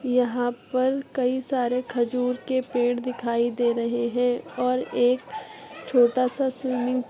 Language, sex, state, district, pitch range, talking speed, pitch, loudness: Hindi, female, Uttar Pradesh, Jyotiba Phule Nagar, 245-255 Hz, 135 wpm, 250 Hz, -25 LUFS